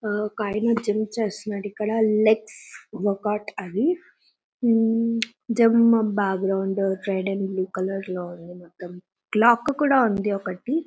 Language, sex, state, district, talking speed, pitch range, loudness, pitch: Telugu, female, Telangana, Nalgonda, 105 wpm, 195-230 Hz, -23 LUFS, 210 Hz